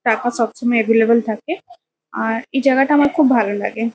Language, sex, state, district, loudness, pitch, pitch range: Bengali, female, West Bengal, Kolkata, -17 LUFS, 235 Hz, 225-275 Hz